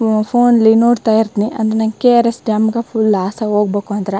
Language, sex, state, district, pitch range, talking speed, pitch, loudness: Kannada, female, Karnataka, Chamarajanagar, 210-230 Hz, 185 wpm, 220 Hz, -14 LUFS